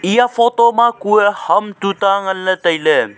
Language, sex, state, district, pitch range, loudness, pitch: Wancho, male, Arunachal Pradesh, Longding, 190-235 Hz, -14 LUFS, 200 Hz